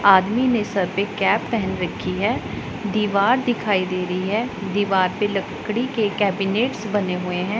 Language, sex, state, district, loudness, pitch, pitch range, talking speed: Hindi, female, Punjab, Pathankot, -21 LUFS, 200 Hz, 190-220 Hz, 165 wpm